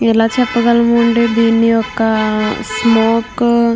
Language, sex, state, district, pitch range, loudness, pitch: Telugu, female, Andhra Pradesh, Krishna, 225-235 Hz, -13 LUFS, 230 Hz